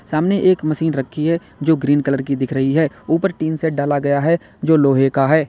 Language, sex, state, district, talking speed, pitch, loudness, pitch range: Hindi, male, Uttar Pradesh, Lalitpur, 240 wpm, 155 Hz, -17 LUFS, 140-160 Hz